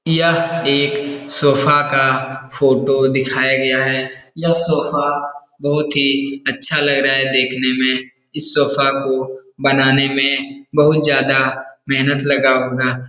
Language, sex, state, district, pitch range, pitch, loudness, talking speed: Hindi, male, Bihar, Jahanabad, 130-145 Hz, 135 Hz, -15 LUFS, 130 wpm